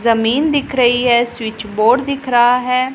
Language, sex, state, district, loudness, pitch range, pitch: Hindi, female, Punjab, Pathankot, -14 LUFS, 230-255 Hz, 245 Hz